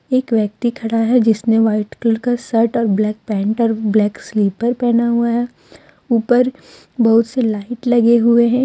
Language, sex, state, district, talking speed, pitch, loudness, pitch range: Hindi, female, Jharkhand, Deoghar, 175 wpm, 230 Hz, -16 LUFS, 220-240 Hz